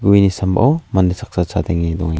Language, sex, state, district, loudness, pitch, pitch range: Garo, male, Meghalaya, South Garo Hills, -16 LUFS, 95 Hz, 85-105 Hz